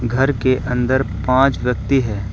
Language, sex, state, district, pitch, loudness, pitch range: Hindi, male, Uttar Pradesh, Shamli, 130 Hz, -18 LUFS, 120-135 Hz